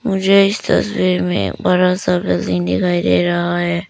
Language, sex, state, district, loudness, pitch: Hindi, female, Arunachal Pradesh, Papum Pare, -16 LUFS, 90 Hz